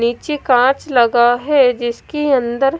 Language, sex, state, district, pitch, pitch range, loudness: Hindi, female, Punjab, Kapurthala, 250 Hz, 240-280 Hz, -15 LUFS